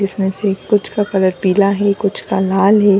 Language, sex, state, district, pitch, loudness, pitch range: Hindi, female, Bihar, Gaya, 200 Hz, -15 LUFS, 195-205 Hz